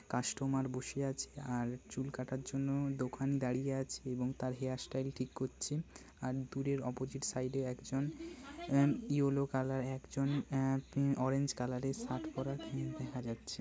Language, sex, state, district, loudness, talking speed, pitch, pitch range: Bengali, male, West Bengal, Paschim Medinipur, -38 LUFS, 150 wpm, 135 Hz, 130-140 Hz